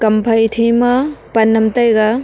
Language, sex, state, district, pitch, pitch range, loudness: Wancho, female, Arunachal Pradesh, Longding, 225 Hz, 220-240 Hz, -13 LUFS